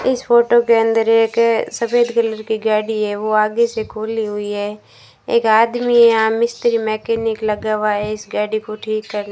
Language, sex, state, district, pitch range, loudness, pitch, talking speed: Hindi, female, Rajasthan, Bikaner, 215-230 Hz, -17 LUFS, 220 Hz, 195 wpm